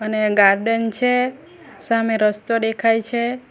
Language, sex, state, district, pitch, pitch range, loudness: Gujarati, female, Gujarat, Valsad, 230 Hz, 215-250 Hz, -18 LUFS